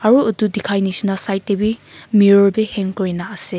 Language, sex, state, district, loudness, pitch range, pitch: Nagamese, female, Nagaland, Kohima, -16 LUFS, 195-215 Hz, 200 Hz